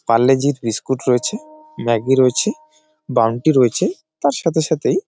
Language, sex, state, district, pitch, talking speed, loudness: Bengali, male, West Bengal, Jalpaiguri, 155 Hz, 140 wpm, -17 LUFS